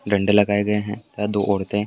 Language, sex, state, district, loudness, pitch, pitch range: Maithili, male, Bihar, Purnia, -21 LUFS, 105 Hz, 100-105 Hz